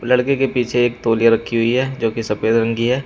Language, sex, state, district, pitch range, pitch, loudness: Hindi, male, Uttar Pradesh, Shamli, 115-125 Hz, 120 Hz, -17 LUFS